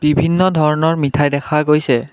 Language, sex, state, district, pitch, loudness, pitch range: Assamese, male, Assam, Kamrup Metropolitan, 150 Hz, -15 LUFS, 145-155 Hz